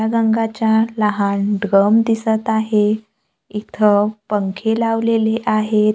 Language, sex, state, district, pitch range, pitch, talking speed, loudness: Marathi, female, Maharashtra, Gondia, 210-225 Hz, 215 Hz, 90 wpm, -17 LUFS